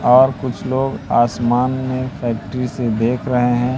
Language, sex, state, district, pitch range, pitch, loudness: Hindi, male, Madhya Pradesh, Katni, 120-130 Hz, 125 Hz, -18 LUFS